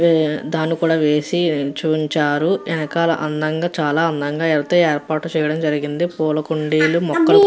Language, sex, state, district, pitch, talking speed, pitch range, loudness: Telugu, female, Andhra Pradesh, Guntur, 155 Hz, 135 wpm, 150-165 Hz, -18 LUFS